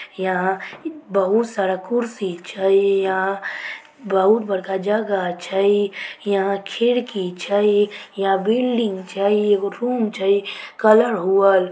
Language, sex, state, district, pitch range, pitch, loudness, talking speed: Maithili, female, Bihar, Samastipur, 190-215 Hz, 200 Hz, -20 LUFS, 110 wpm